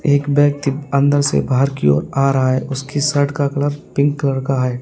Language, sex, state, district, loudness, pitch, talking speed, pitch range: Hindi, male, Uttar Pradesh, Lalitpur, -17 LUFS, 140 Hz, 225 wpm, 135-145 Hz